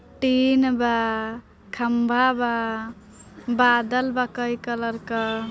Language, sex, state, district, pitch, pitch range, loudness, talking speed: Bhojpuri, female, Bihar, Gopalganj, 235 Hz, 225-250 Hz, -23 LUFS, 100 wpm